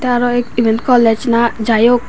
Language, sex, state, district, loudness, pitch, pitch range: Chakma, female, Tripura, Dhalai, -13 LUFS, 240 Hz, 230-245 Hz